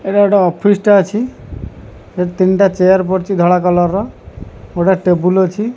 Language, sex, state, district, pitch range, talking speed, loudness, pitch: Odia, male, Odisha, Khordha, 175-200 Hz, 155 wpm, -13 LUFS, 185 Hz